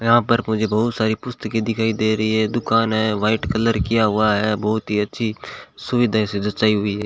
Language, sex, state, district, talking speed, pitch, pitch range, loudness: Hindi, male, Rajasthan, Bikaner, 195 wpm, 110 Hz, 105-115 Hz, -20 LUFS